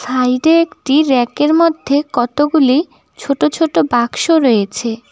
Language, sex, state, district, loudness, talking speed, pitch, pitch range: Bengali, female, West Bengal, Cooch Behar, -14 LUFS, 105 wpm, 285 Hz, 250-310 Hz